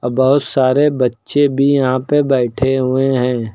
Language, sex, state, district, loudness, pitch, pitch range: Hindi, male, Uttar Pradesh, Lucknow, -15 LUFS, 130 Hz, 125-140 Hz